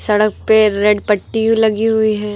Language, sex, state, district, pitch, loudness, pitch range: Hindi, female, Uttar Pradesh, Lucknow, 215 Hz, -14 LUFS, 210-220 Hz